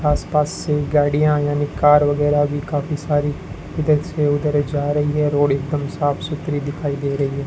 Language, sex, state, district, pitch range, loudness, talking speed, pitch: Hindi, male, Rajasthan, Bikaner, 145-150 Hz, -19 LUFS, 185 wpm, 145 Hz